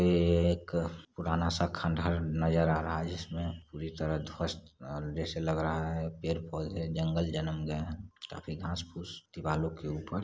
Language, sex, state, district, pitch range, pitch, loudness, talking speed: Hindi, male, Bihar, Saran, 80-85 Hz, 80 Hz, -34 LUFS, 160 wpm